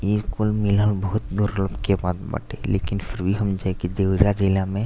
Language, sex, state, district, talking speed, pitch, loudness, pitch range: Bhojpuri, male, Uttar Pradesh, Deoria, 220 wpm, 100 Hz, -23 LUFS, 95-105 Hz